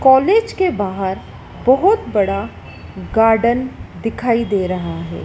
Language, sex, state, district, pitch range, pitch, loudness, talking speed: Hindi, female, Madhya Pradesh, Dhar, 195-265 Hz, 225 Hz, -17 LUFS, 115 wpm